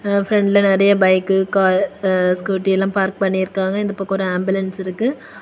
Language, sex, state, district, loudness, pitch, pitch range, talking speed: Tamil, female, Tamil Nadu, Kanyakumari, -17 LUFS, 195 Hz, 190-200 Hz, 165 wpm